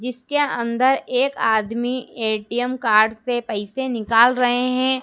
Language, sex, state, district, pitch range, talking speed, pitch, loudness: Hindi, female, Madhya Pradesh, Dhar, 225-255 Hz, 130 wpm, 245 Hz, -20 LUFS